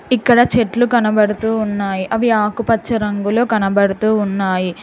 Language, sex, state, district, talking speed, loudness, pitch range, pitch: Telugu, female, Telangana, Hyderabad, 110 wpm, -16 LUFS, 200-230 Hz, 215 Hz